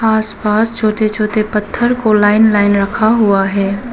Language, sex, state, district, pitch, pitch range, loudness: Hindi, female, Arunachal Pradesh, Lower Dibang Valley, 215 Hz, 205-220 Hz, -13 LUFS